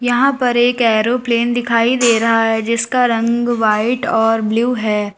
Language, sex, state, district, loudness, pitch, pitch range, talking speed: Hindi, female, Uttar Pradesh, Lalitpur, -15 LUFS, 235 Hz, 225-245 Hz, 160 wpm